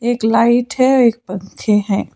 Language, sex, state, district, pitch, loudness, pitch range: Hindi, female, Karnataka, Bangalore, 230 Hz, -14 LUFS, 210-240 Hz